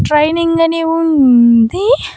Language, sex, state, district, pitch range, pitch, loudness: Telugu, female, Andhra Pradesh, Annamaya, 265-330 Hz, 325 Hz, -11 LUFS